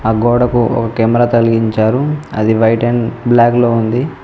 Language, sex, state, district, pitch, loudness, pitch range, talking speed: Telugu, male, Telangana, Mahabubabad, 115 Hz, -13 LUFS, 115-120 Hz, 155 wpm